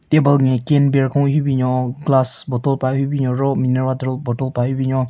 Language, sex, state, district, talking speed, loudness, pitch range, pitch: Rengma, male, Nagaland, Kohima, 225 wpm, -18 LUFS, 130-140 Hz, 130 Hz